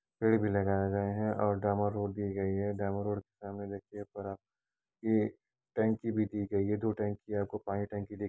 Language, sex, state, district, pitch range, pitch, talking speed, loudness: Hindi, male, Uttar Pradesh, Etah, 100-105 Hz, 105 Hz, 230 wpm, -34 LUFS